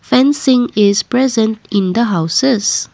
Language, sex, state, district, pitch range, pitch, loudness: English, female, Assam, Kamrup Metropolitan, 200-255 Hz, 220 Hz, -13 LUFS